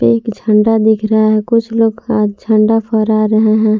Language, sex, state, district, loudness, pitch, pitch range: Hindi, female, Jharkhand, Palamu, -12 LUFS, 220 Hz, 215-225 Hz